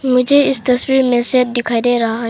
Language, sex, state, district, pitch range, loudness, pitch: Hindi, female, Arunachal Pradesh, Papum Pare, 240-265 Hz, -13 LUFS, 250 Hz